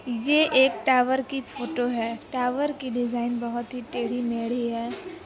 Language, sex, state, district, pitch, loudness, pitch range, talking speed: Hindi, female, Bihar, Purnia, 245 Hz, -25 LUFS, 235-265 Hz, 150 wpm